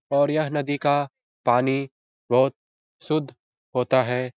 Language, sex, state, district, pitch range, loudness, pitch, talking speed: Hindi, male, Bihar, Jahanabad, 125-145 Hz, -23 LUFS, 135 Hz, 125 wpm